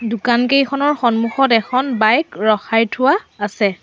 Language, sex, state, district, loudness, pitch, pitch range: Assamese, female, Assam, Sonitpur, -16 LUFS, 235 Hz, 220-270 Hz